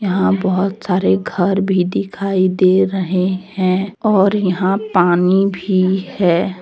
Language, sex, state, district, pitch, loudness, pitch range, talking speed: Hindi, female, Jharkhand, Deoghar, 185 Hz, -16 LUFS, 180-195 Hz, 125 wpm